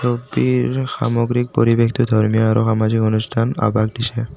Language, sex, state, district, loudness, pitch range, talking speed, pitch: Assamese, male, Assam, Kamrup Metropolitan, -17 LUFS, 110-120 Hz, 125 wpm, 115 Hz